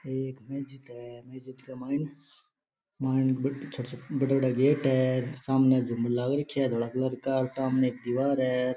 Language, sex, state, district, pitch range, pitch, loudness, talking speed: Rajasthani, male, Rajasthan, Nagaur, 125-135 Hz, 130 Hz, -28 LUFS, 165 wpm